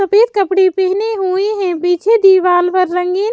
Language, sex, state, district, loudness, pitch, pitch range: Hindi, female, Chhattisgarh, Raipur, -13 LUFS, 380 Hz, 365-410 Hz